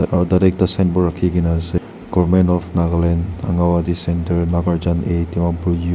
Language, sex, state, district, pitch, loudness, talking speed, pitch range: Nagamese, male, Nagaland, Dimapur, 85 Hz, -18 LUFS, 150 wpm, 85-90 Hz